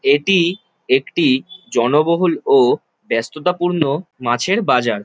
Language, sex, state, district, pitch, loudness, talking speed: Bengali, male, West Bengal, Jalpaiguri, 180 Hz, -17 LUFS, 85 wpm